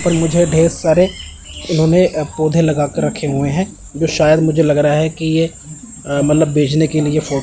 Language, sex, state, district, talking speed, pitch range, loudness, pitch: Hindi, male, Chandigarh, Chandigarh, 180 wpm, 150-165 Hz, -15 LUFS, 155 Hz